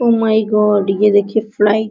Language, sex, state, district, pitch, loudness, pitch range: Hindi, female, Bihar, Araria, 210 Hz, -14 LUFS, 205-220 Hz